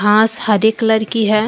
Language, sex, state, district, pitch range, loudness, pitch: Hindi, female, Jharkhand, Deoghar, 215-225 Hz, -14 LUFS, 220 Hz